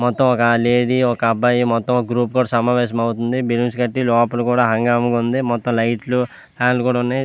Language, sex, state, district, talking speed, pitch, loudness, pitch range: Telugu, male, Andhra Pradesh, Visakhapatnam, 165 wpm, 120 Hz, -17 LUFS, 120-125 Hz